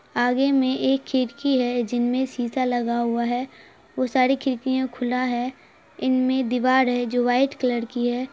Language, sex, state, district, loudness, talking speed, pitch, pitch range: Hindi, female, Bihar, Saharsa, -23 LUFS, 175 wpm, 255 Hz, 245-260 Hz